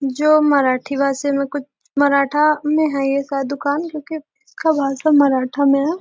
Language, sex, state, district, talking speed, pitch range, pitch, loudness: Hindi, female, Bihar, Gopalganj, 160 wpm, 275-305 Hz, 285 Hz, -17 LUFS